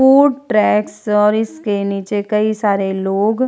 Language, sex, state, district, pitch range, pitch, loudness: Hindi, female, Uttar Pradesh, Hamirpur, 200-220 Hz, 210 Hz, -16 LUFS